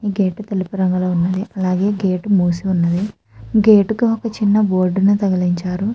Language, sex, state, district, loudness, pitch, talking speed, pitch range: Telugu, female, Andhra Pradesh, Srikakulam, -17 LUFS, 190 Hz, 140 wpm, 185-205 Hz